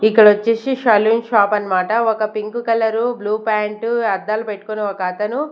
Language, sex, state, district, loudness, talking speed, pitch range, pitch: Telugu, female, Andhra Pradesh, Sri Satya Sai, -17 LUFS, 150 wpm, 210-230 Hz, 215 Hz